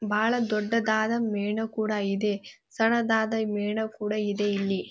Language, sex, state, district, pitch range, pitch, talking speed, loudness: Kannada, female, Karnataka, Bijapur, 205-225 Hz, 215 Hz, 120 wpm, -27 LUFS